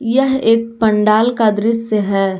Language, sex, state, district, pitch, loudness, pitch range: Hindi, female, Jharkhand, Garhwa, 225 Hz, -14 LUFS, 210-230 Hz